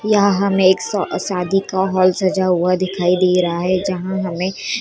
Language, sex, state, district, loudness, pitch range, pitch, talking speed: Chhattisgarhi, female, Chhattisgarh, Korba, -17 LUFS, 180-195 Hz, 185 Hz, 200 wpm